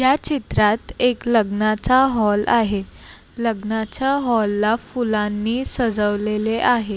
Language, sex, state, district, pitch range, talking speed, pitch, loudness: Marathi, female, Maharashtra, Sindhudurg, 210-245 Hz, 105 wpm, 225 Hz, -19 LUFS